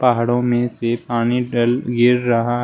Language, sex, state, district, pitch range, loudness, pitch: Hindi, male, Uttar Pradesh, Shamli, 120-125 Hz, -18 LUFS, 120 Hz